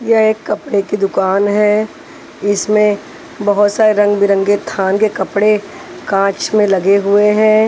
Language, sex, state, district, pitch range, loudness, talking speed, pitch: Hindi, female, Punjab, Pathankot, 200-215 Hz, -13 LUFS, 150 wpm, 205 Hz